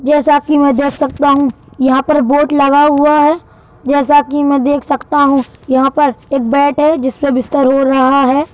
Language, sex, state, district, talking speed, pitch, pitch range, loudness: Hindi, male, Madhya Pradesh, Bhopal, 205 wpm, 285 Hz, 270-290 Hz, -11 LUFS